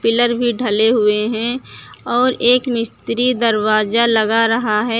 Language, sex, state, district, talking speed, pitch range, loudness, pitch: Hindi, female, Uttar Pradesh, Lucknow, 145 wpm, 220-240 Hz, -16 LUFS, 230 Hz